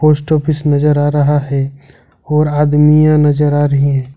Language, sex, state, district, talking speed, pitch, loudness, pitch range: Hindi, male, Jharkhand, Ranchi, 170 wpm, 145 Hz, -12 LUFS, 140-150 Hz